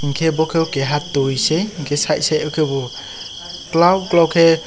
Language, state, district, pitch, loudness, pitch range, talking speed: Kokborok, Tripura, West Tripura, 155 Hz, -17 LUFS, 145-165 Hz, 165 wpm